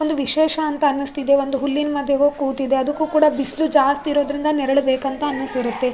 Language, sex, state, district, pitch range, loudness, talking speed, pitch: Kannada, female, Karnataka, Raichur, 275-295 Hz, -19 LUFS, 180 wpm, 280 Hz